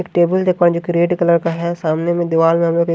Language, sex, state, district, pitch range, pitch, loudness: Hindi, male, Haryana, Jhajjar, 165-175 Hz, 170 Hz, -16 LUFS